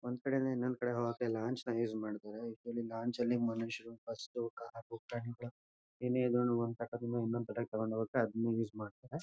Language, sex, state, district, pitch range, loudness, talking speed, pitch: Kannada, male, Karnataka, Shimoga, 115-120 Hz, -38 LUFS, 170 wpm, 115 Hz